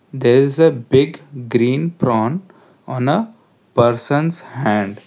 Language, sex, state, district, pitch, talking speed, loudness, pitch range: English, male, Karnataka, Bangalore, 135 Hz, 120 wpm, -17 LUFS, 120-160 Hz